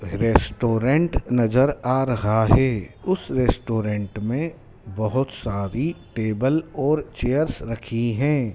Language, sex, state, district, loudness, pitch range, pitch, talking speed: Hindi, male, Madhya Pradesh, Dhar, -22 LUFS, 110-135 Hz, 120 Hz, 105 wpm